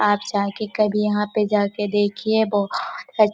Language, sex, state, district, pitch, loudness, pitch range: Hindi, female, Chhattisgarh, Korba, 210 Hz, -21 LUFS, 205-215 Hz